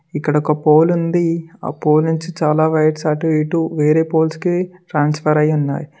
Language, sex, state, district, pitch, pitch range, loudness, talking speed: Telugu, male, Telangana, Mahabubabad, 155 Hz, 150-165 Hz, -16 LUFS, 160 wpm